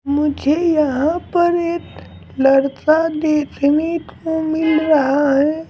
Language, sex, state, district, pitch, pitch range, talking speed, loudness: Hindi, male, Bihar, Patna, 310 Hz, 285-325 Hz, 105 wpm, -17 LUFS